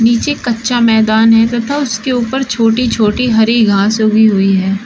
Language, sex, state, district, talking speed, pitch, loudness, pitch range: Hindi, female, Uttar Pradesh, Shamli, 175 wpm, 225 Hz, -11 LUFS, 220-245 Hz